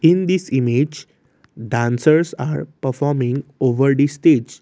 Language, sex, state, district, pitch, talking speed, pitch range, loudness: English, male, Assam, Kamrup Metropolitan, 140 Hz, 115 wpm, 130-155 Hz, -18 LUFS